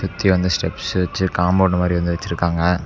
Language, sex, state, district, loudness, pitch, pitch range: Tamil, male, Tamil Nadu, Namakkal, -19 LUFS, 90 Hz, 85-95 Hz